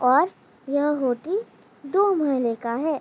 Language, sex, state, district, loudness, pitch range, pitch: Hindi, female, Uttar Pradesh, Gorakhpur, -24 LUFS, 255-335 Hz, 285 Hz